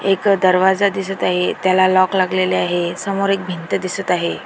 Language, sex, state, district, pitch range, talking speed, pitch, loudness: Marathi, female, Maharashtra, Dhule, 180-195 Hz, 175 wpm, 185 Hz, -17 LUFS